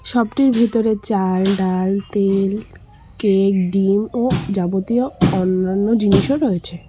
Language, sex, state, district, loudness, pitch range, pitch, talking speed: Bengali, female, West Bengal, Cooch Behar, -17 LUFS, 185-225 Hz, 195 Hz, 105 wpm